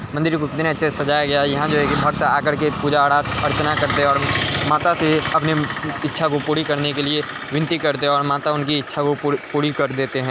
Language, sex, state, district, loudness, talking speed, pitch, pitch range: Hindi, male, Bihar, Gaya, -19 LUFS, 245 wpm, 145 Hz, 140-150 Hz